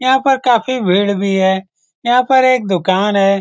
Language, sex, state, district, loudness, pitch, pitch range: Hindi, male, Bihar, Saran, -14 LUFS, 200 Hz, 190-255 Hz